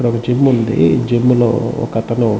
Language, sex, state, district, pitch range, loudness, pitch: Telugu, male, Andhra Pradesh, Chittoor, 115-120 Hz, -14 LUFS, 120 Hz